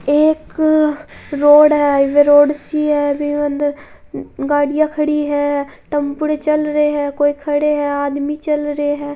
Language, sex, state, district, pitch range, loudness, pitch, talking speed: Hindi, female, Rajasthan, Churu, 290-300 Hz, -15 LUFS, 290 Hz, 155 wpm